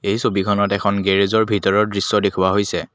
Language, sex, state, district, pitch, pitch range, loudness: Assamese, male, Assam, Kamrup Metropolitan, 100 Hz, 100-105 Hz, -18 LUFS